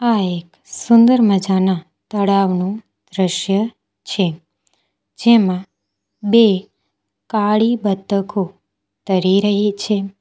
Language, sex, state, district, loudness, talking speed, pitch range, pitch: Gujarati, female, Gujarat, Valsad, -17 LUFS, 80 wpm, 180-210 Hz, 195 Hz